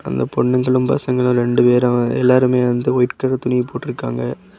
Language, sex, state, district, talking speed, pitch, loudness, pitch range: Tamil, male, Tamil Nadu, Kanyakumari, 145 wpm, 125 Hz, -17 LUFS, 120-125 Hz